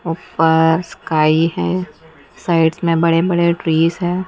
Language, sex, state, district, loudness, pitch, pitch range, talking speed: Hindi, female, Odisha, Nuapada, -16 LUFS, 165 Hz, 160-175 Hz, 125 wpm